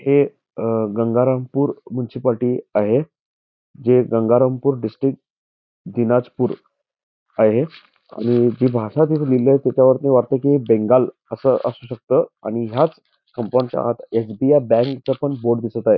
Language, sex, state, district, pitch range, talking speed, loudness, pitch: Marathi, male, Karnataka, Belgaum, 115-135 Hz, 130 wpm, -19 LUFS, 125 Hz